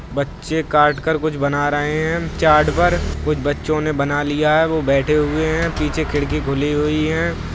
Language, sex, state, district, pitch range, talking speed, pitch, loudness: Hindi, male, Uttar Pradesh, Budaun, 145-155 Hz, 190 wpm, 150 Hz, -18 LUFS